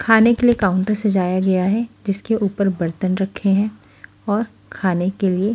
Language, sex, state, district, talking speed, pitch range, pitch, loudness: Hindi, female, Haryana, Rohtak, 175 wpm, 190-215 Hz, 200 Hz, -19 LUFS